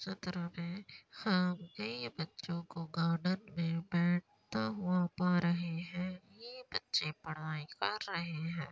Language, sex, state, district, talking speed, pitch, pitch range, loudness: Hindi, female, Bihar, Kishanganj, 110 wpm, 175 Hz, 165-185 Hz, -37 LUFS